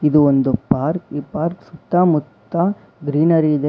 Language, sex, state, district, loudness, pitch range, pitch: Kannada, male, Karnataka, Bangalore, -18 LUFS, 145-170 Hz, 155 Hz